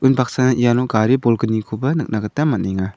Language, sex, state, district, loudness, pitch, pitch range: Garo, male, Meghalaya, South Garo Hills, -18 LUFS, 120 Hz, 110-130 Hz